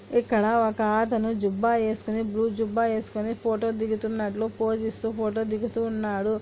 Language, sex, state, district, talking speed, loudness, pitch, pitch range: Telugu, female, Andhra Pradesh, Anantapur, 140 wpm, -26 LUFS, 220 Hz, 220-225 Hz